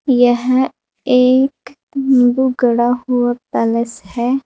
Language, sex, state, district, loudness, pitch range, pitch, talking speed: Hindi, female, Uttar Pradesh, Saharanpur, -15 LUFS, 240-260 Hz, 250 Hz, 95 wpm